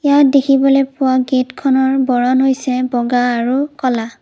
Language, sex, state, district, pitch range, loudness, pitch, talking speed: Assamese, female, Assam, Kamrup Metropolitan, 250-275 Hz, -14 LUFS, 260 Hz, 130 wpm